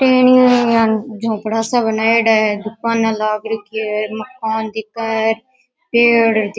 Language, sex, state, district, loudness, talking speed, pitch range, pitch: Rajasthani, female, Rajasthan, Nagaur, -16 LUFS, 155 wpm, 220-235 Hz, 225 Hz